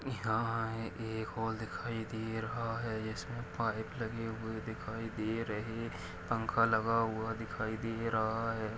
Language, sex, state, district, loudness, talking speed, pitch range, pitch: Hindi, male, Maharashtra, Dhule, -37 LUFS, 145 wpm, 110-115 Hz, 115 Hz